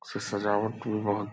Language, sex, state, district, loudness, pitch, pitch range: Hindi, male, Bihar, Purnia, -30 LUFS, 105 Hz, 100-110 Hz